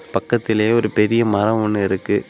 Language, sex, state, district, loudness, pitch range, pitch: Tamil, male, Tamil Nadu, Kanyakumari, -18 LUFS, 105-115 Hz, 110 Hz